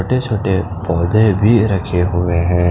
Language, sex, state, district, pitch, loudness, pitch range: Hindi, male, Punjab, Fazilka, 95 Hz, -15 LUFS, 90-110 Hz